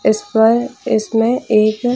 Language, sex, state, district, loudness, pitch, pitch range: Hindi, female, Bihar, Jahanabad, -15 LUFS, 225 Hz, 215-245 Hz